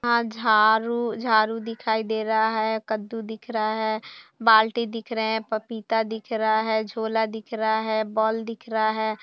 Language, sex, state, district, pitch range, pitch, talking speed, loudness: Hindi, female, Bihar, Purnia, 220-225 Hz, 220 Hz, 175 wpm, -24 LUFS